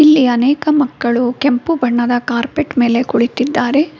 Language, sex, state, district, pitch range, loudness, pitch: Kannada, female, Karnataka, Bangalore, 240-290 Hz, -14 LUFS, 255 Hz